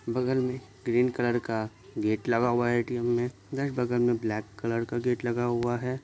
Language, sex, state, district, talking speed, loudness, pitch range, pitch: Maithili, male, Bihar, Supaul, 210 wpm, -29 LUFS, 115-125 Hz, 120 Hz